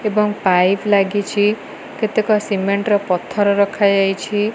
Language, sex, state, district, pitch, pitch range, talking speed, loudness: Odia, female, Odisha, Malkangiri, 205 Hz, 195-210 Hz, 105 wpm, -17 LUFS